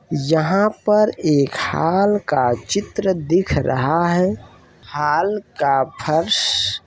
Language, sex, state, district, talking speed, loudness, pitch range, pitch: Hindi, male, Uttar Pradesh, Jalaun, 115 wpm, -18 LUFS, 130-190 Hz, 155 Hz